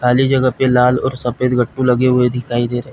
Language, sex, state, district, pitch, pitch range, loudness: Hindi, male, Chhattisgarh, Bilaspur, 125 Hz, 125-130 Hz, -15 LUFS